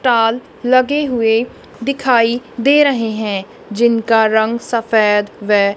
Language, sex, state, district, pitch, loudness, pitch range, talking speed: Hindi, female, Punjab, Kapurthala, 230 Hz, -15 LUFS, 220-250 Hz, 115 wpm